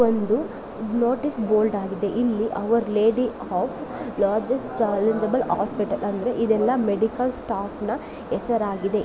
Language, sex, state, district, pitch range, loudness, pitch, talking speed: Kannada, female, Karnataka, Dharwad, 210-240 Hz, -24 LUFS, 220 Hz, 120 wpm